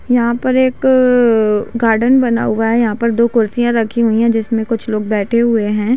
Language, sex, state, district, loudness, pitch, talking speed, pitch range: Hindi, female, Chhattisgarh, Bilaspur, -14 LUFS, 235 Hz, 200 wpm, 225-240 Hz